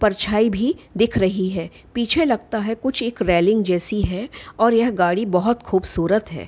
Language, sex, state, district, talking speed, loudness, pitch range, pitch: Hindi, female, Bihar, Gopalganj, 185 wpm, -20 LUFS, 190-230 Hz, 215 Hz